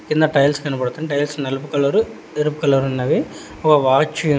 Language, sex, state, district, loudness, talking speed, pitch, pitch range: Telugu, male, Telangana, Hyderabad, -18 LUFS, 165 wpm, 145 Hz, 135-150 Hz